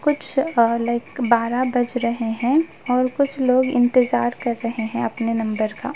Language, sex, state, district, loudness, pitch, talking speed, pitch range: Hindi, female, Bihar, Gaya, -20 LUFS, 245 Hz, 170 wpm, 235-260 Hz